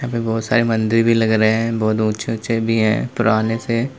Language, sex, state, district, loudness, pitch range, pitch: Hindi, male, Uttar Pradesh, Lalitpur, -18 LUFS, 110-115 Hz, 115 Hz